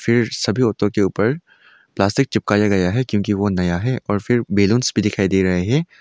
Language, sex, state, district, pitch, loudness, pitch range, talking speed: Hindi, male, Arunachal Pradesh, Longding, 105 Hz, -18 LUFS, 100-120 Hz, 210 wpm